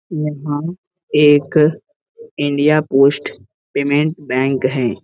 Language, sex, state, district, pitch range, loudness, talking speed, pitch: Hindi, male, Bihar, Lakhisarai, 140-155 Hz, -16 LUFS, 85 wpm, 150 Hz